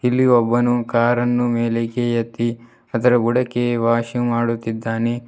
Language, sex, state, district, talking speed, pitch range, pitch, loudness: Kannada, male, Karnataka, Bidar, 115 wpm, 115-120 Hz, 120 Hz, -19 LUFS